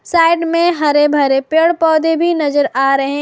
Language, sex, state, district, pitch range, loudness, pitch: Hindi, female, Jharkhand, Garhwa, 285-335 Hz, -13 LUFS, 315 Hz